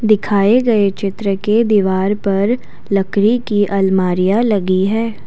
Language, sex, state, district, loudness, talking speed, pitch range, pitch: Hindi, female, Assam, Kamrup Metropolitan, -15 LUFS, 125 wpm, 195-215 Hz, 205 Hz